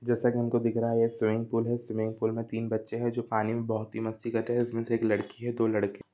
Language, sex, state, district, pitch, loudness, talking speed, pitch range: Hindi, male, Chhattisgarh, Bilaspur, 115 Hz, -30 LUFS, 325 wpm, 110-120 Hz